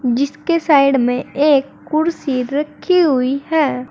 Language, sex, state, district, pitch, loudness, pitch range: Hindi, female, Uttar Pradesh, Saharanpur, 280 Hz, -16 LUFS, 260-310 Hz